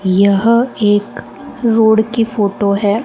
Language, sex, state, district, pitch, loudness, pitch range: Hindi, female, Rajasthan, Bikaner, 215 Hz, -13 LUFS, 205-230 Hz